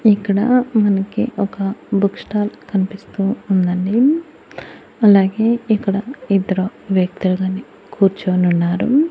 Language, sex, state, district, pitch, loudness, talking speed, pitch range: Telugu, female, Andhra Pradesh, Annamaya, 200 Hz, -17 LUFS, 85 wpm, 190-220 Hz